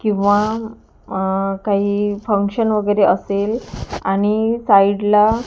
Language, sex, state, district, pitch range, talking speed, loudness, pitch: Marathi, female, Maharashtra, Gondia, 200-215 Hz, 100 wpm, -17 LUFS, 205 Hz